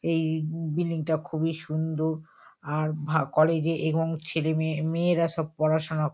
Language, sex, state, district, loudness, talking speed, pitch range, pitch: Bengali, female, West Bengal, Kolkata, -27 LUFS, 145 wpm, 155-165 Hz, 160 Hz